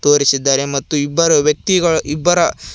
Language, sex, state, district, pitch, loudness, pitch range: Kannada, male, Karnataka, Koppal, 150 Hz, -14 LUFS, 140-170 Hz